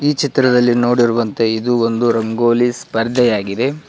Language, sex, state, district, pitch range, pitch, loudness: Kannada, male, Karnataka, Koppal, 115-125 Hz, 120 Hz, -15 LUFS